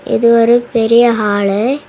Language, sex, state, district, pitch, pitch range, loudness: Tamil, female, Tamil Nadu, Kanyakumari, 230 Hz, 215-240 Hz, -11 LUFS